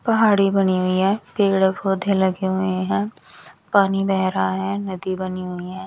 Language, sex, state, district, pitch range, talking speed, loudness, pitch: Hindi, female, Bihar, West Champaran, 185-200 Hz, 175 wpm, -20 LUFS, 190 Hz